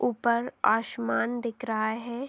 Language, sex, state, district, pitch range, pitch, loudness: Hindi, female, Uttar Pradesh, Deoria, 220-240 Hz, 235 Hz, -28 LUFS